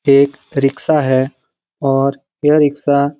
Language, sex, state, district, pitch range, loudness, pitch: Hindi, male, Bihar, Lakhisarai, 135-145 Hz, -15 LUFS, 140 Hz